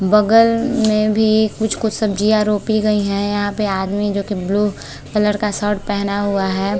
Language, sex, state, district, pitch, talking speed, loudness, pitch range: Hindi, female, Chhattisgarh, Balrampur, 210 Hz, 195 wpm, -17 LUFS, 200-215 Hz